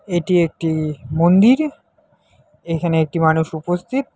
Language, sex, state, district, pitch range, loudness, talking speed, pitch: Bengali, male, West Bengal, Alipurduar, 160-180 Hz, -18 LUFS, 100 wpm, 165 Hz